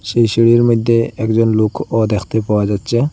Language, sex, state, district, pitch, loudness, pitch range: Bengali, male, Assam, Hailakandi, 115 Hz, -14 LUFS, 105-115 Hz